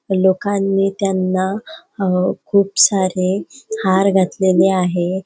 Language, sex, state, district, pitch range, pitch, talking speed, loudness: Marathi, female, Goa, North and South Goa, 185-200 Hz, 190 Hz, 90 wpm, -16 LUFS